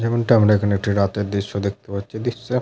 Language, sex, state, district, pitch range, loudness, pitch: Bengali, male, West Bengal, Jalpaiguri, 100-115 Hz, -20 LUFS, 105 Hz